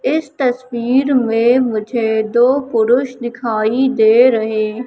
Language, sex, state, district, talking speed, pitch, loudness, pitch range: Hindi, female, Madhya Pradesh, Katni, 110 wpm, 240 Hz, -15 LUFS, 225-255 Hz